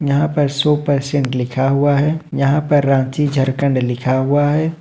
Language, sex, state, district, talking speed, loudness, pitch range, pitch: Hindi, male, Jharkhand, Ranchi, 175 wpm, -16 LUFS, 135-145 Hz, 140 Hz